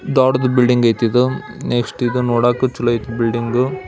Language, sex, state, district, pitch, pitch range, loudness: Kannada, male, Karnataka, Belgaum, 125 Hz, 120-125 Hz, -17 LUFS